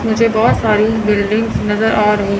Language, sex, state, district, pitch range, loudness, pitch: Hindi, male, Chandigarh, Chandigarh, 210-220 Hz, -14 LUFS, 215 Hz